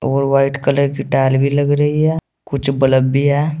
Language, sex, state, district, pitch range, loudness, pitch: Hindi, male, Uttar Pradesh, Saharanpur, 135-145 Hz, -15 LUFS, 140 Hz